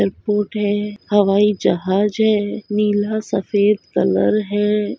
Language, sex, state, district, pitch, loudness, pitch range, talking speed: Hindi, female, Bihar, Kishanganj, 205 Hz, -18 LUFS, 205-210 Hz, 110 wpm